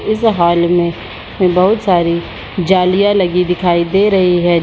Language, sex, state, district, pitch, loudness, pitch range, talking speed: Hindi, female, Bihar, Supaul, 180 Hz, -13 LUFS, 170-190 Hz, 140 wpm